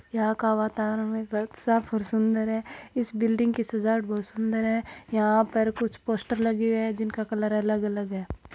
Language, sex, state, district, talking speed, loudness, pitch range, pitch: Marwari, female, Rajasthan, Churu, 190 wpm, -27 LUFS, 215-225 Hz, 220 Hz